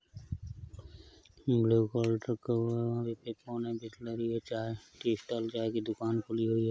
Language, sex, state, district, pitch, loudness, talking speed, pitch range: Hindi, male, Uttar Pradesh, Varanasi, 115 Hz, -34 LUFS, 70 wpm, 110-115 Hz